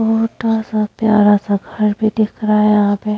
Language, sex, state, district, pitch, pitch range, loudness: Hindi, female, Uttar Pradesh, Hamirpur, 215 Hz, 210-220 Hz, -15 LUFS